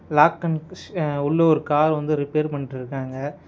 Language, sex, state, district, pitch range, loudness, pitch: Tamil, male, Tamil Nadu, Nilgiris, 145-155 Hz, -22 LUFS, 150 Hz